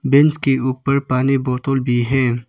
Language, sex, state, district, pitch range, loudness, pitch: Hindi, male, Arunachal Pradesh, Papum Pare, 125-140 Hz, -17 LUFS, 130 Hz